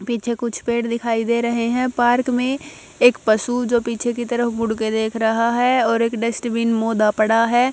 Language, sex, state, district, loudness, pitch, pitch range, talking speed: Hindi, female, Bihar, Katihar, -19 LUFS, 235 Hz, 230-240 Hz, 200 wpm